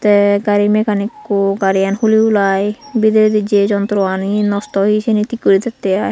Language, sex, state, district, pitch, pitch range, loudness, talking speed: Chakma, female, Tripura, Unakoti, 205 Hz, 200-215 Hz, -14 LUFS, 175 wpm